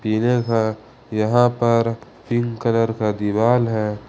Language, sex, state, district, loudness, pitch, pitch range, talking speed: Hindi, male, Jharkhand, Ranchi, -20 LUFS, 115 Hz, 110-120 Hz, 130 wpm